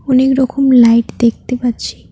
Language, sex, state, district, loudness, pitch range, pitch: Bengali, female, West Bengal, Cooch Behar, -12 LUFS, 230-260 Hz, 245 Hz